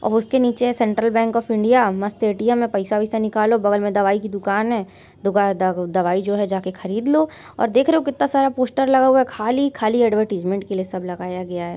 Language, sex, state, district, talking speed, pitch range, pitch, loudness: Hindi, female, Uttar Pradesh, Varanasi, 250 wpm, 195-240 Hz, 215 Hz, -19 LUFS